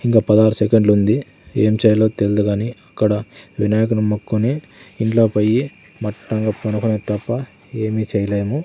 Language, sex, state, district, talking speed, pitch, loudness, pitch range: Telugu, male, Andhra Pradesh, Sri Satya Sai, 125 wpm, 110 Hz, -18 LUFS, 105-115 Hz